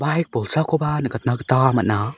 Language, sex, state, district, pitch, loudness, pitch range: Garo, male, Meghalaya, South Garo Hills, 130 Hz, -20 LUFS, 120-150 Hz